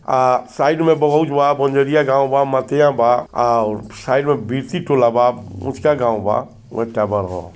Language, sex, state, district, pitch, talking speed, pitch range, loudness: Bhojpuri, male, Bihar, Gopalganj, 130 Hz, 150 wpm, 115-140 Hz, -17 LUFS